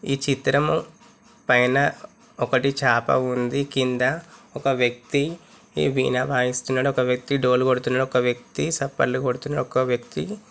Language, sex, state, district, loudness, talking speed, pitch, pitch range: Telugu, male, Andhra Pradesh, Chittoor, -22 LUFS, 135 wpm, 130 Hz, 125-140 Hz